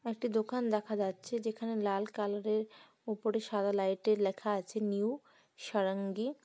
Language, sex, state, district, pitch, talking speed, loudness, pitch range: Bengali, female, West Bengal, Jhargram, 215 Hz, 130 wpm, -35 LUFS, 200-225 Hz